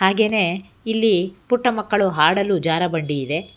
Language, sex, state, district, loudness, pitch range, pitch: Kannada, female, Karnataka, Bangalore, -19 LUFS, 170-215 Hz, 190 Hz